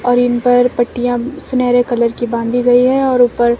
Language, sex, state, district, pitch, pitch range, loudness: Hindi, female, Himachal Pradesh, Shimla, 245 Hz, 240-245 Hz, -14 LUFS